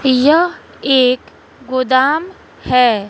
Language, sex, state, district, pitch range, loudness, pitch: Hindi, female, Bihar, West Champaran, 255-295 Hz, -14 LUFS, 260 Hz